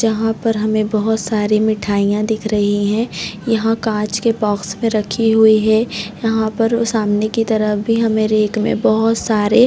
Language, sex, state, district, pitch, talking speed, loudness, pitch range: Hindi, female, Chhattisgarh, Raigarh, 220 Hz, 175 wpm, -16 LUFS, 210-225 Hz